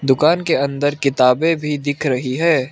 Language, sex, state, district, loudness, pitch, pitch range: Hindi, male, Arunachal Pradesh, Lower Dibang Valley, -17 LUFS, 145 Hz, 130-155 Hz